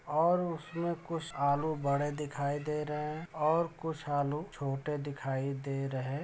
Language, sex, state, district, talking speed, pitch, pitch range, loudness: Hindi, male, Bihar, Muzaffarpur, 165 wpm, 150 Hz, 140-160 Hz, -34 LUFS